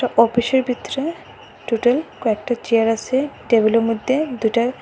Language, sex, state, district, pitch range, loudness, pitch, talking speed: Bengali, female, Assam, Hailakandi, 230-260 Hz, -19 LUFS, 240 Hz, 110 wpm